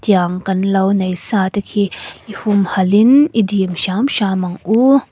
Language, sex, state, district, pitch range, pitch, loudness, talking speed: Mizo, female, Mizoram, Aizawl, 190-215 Hz, 195 Hz, -15 LUFS, 175 wpm